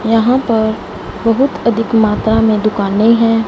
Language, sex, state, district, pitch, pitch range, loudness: Hindi, female, Punjab, Fazilka, 225 Hz, 220-230 Hz, -13 LUFS